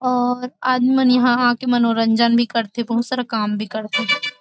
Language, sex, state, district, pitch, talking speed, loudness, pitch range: Chhattisgarhi, female, Chhattisgarh, Rajnandgaon, 245 Hz, 190 wpm, -18 LUFS, 230-250 Hz